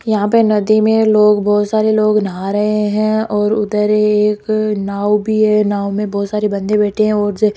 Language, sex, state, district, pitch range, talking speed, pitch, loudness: Hindi, female, Rajasthan, Jaipur, 205-215 Hz, 215 wpm, 210 Hz, -14 LUFS